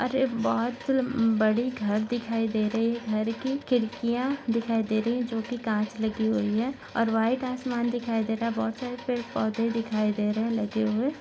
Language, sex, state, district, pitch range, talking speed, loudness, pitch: Hindi, female, Maharashtra, Nagpur, 220-245 Hz, 195 wpm, -27 LUFS, 230 Hz